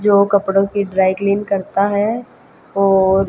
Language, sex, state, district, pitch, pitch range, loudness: Hindi, female, Haryana, Jhajjar, 200 Hz, 195-200 Hz, -16 LUFS